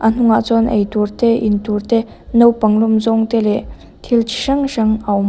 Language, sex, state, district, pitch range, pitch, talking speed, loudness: Mizo, female, Mizoram, Aizawl, 215-230 Hz, 225 Hz, 240 wpm, -15 LUFS